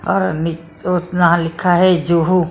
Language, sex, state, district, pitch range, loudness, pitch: Hindi, female, Maharashtra, Mumbai Suburban, 165-180 Hz, -16 LUFS, 175 Hz